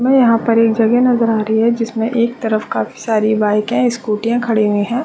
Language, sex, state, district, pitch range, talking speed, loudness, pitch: Hindi, female, Chhattisgarh, Raigarh, 220-235 Hz, 215 wpm, -15 LUFS, 230 Hz